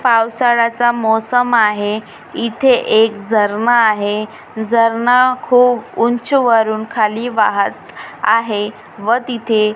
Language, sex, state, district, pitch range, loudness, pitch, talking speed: Marathi, female, Maharashtra, Gondia, 215-240 Hz, -14 LUFS, 230 Hz, 100 wpm